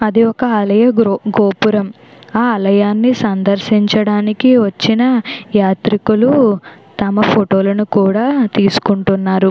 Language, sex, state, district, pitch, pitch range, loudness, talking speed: Telugu, female, Andhra Pradesh, Chittoor, 210 Hz, 200-230 Hz, -13 LUFS, 90 wpm